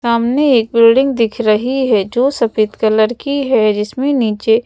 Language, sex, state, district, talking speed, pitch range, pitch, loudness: Hindi, female, Madhya Pradesh, Bhopal, 165 wpm, 220-260 Hz, 230 Hz, -14 LUFS